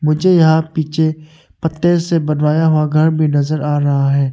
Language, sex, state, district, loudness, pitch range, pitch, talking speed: Hindi, male, Arunachal Pradesh, Longding, -14 LUFS, 150-160 Hz, 155 Hz, 180 wpm